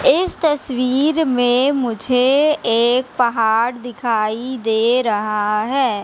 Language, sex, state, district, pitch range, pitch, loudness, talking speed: Hindi, female, Madhya Pradesh, Katni, 225-270 Hz, 245 Hz, -17 LUFS, 100 wpm